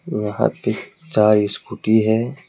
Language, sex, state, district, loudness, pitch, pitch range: Hindi, male, Jharkhand, Deoghar, -19 LUFS, 110 Hz, 105-125 Hz